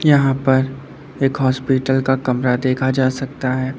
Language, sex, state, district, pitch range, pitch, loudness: Hindi, male, Uttar Pradesh, Lucknow, 130-135 Hz, 130 Hz, -18 LUFS